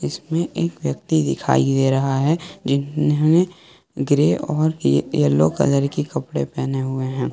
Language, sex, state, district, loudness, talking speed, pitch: Hindi, male, Jharkhand, Garhwa, -20 LUFS, 140 wpm, 135 Hz